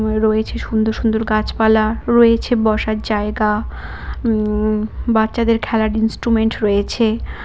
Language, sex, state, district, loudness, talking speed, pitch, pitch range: Bengali, female, West Bengal, Cooch Behar, -17 LUFS, 95 wpm, 220 Hz, 215-225 Hz